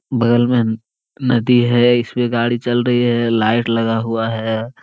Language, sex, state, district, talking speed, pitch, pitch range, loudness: Hindi, male, Bihar, Jamui, 185 wpm, 120 Hz, 115-120 Hz, -16 LUFS